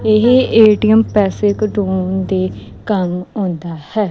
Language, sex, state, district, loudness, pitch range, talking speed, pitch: Punjabi, female, Punjab, Kapurthala, -14 LUFS, 185-215 Hz, 115 wpm, 205 Hz